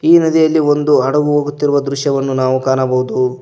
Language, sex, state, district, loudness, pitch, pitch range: Kannada, male, Karnataka, Koppal, -14 LUFS, 145 Hz, 130-150 Hz